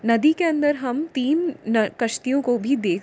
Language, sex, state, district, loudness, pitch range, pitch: Hindi, female, Uttar Pradesh, Jyotiba Phule Nagar, -22 LUFS, 230-300 Hz, 265 Hz